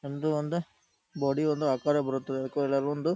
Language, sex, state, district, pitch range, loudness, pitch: Kannada, male, Karnataka, Dharwad, 140-155 Hz, -29 LUFS, 145 Hz